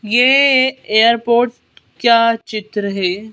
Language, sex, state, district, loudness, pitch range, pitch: Hindi, female, Madhya Pradesh, Bhopal, -14 LUFS, 215-245 Hz, 230 Hz